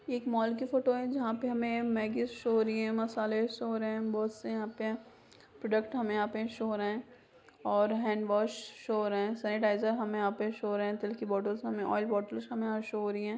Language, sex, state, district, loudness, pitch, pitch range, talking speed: Hindi, female, Bihar, Begusarai, -33 LUFS, 220 Hz, 210-230 Hz, 250 wpm